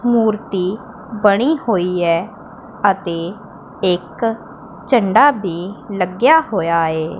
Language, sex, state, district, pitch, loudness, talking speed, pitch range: Punjabi, female, Punjab, Pathankot, 205 Hz, -17 LUFS, 90 wpm, 180-230 Hz